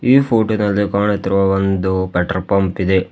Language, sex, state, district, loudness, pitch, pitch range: Kannada, male, Karnataka, Bidar, -16 LUFS, 100 Hz, 95-105 Hz